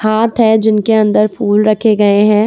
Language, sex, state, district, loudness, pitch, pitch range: Hindi, female, Jharkhand, Ranchi, -11 LUFS, 215 Hz, 210-220 Hz